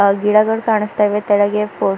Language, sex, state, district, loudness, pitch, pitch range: Kannada, female, Karnataka, Bidar, -15 LUFS, 210 Hz, 205-215 Hz